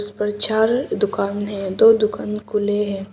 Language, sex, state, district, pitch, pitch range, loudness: Hindi, female, Arunachal Pradesh, Papum Pare, 210 Hz, 205-215 Hz, -19 LUFS